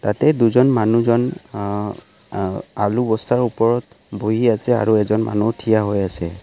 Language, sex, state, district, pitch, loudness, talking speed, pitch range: Assamese, male, Assam, Kamrup Metropolitan, 110 Hz, -18 LUFS, 150 wpm, 105-120 Hz